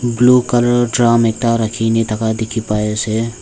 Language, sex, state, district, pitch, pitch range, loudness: Nagamese, male, Nagaland, Dimapur, 115 Hz, 110-120 Hz, -15 LUFS